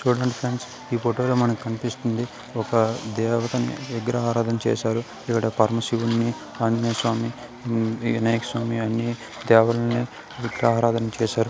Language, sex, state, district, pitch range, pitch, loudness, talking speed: Telugu, male, Karnataka, Dharwad, 115-120 Hz, 115 Hz, -24 LUFS, 120 wpm